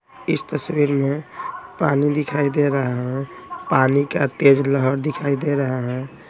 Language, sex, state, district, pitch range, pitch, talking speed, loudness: Hindi, male, Bihar, Patna, 135-150 Hz, 140 Hz, 150 wpm, -20 LUFS